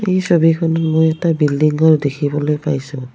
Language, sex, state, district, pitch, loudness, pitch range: Assamese, female, Assam, Kamrup Metropolitan, 155 Hz, -15 LUFS, 145-165 Hz